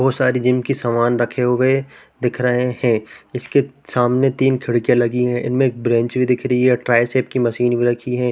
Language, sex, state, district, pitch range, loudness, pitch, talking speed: Hindi, male, Chhattisgarh, Raigarh, 120-130 Hz, -18 LUFS, 125 Hz, 200 wpm